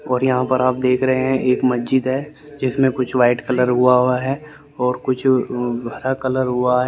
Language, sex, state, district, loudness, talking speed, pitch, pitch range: Hindi, male, Haryana, Jhajjar, -18 LUFS, 190 wpm, 130 Hz, 125-130 Hz